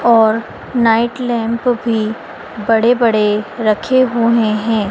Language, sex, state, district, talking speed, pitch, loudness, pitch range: Hindi, female, Madhya Pradesh, Dhar, 100 wpm, 230 Hz, -15 LUFS, 220-235 Hz